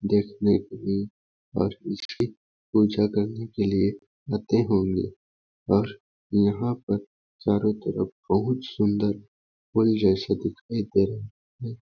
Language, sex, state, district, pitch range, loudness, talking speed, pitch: Hindi, male, Chhattisgarh, Balrampur, 100-110 Hz, -26 LUFS, 105 wpm, 105 Hz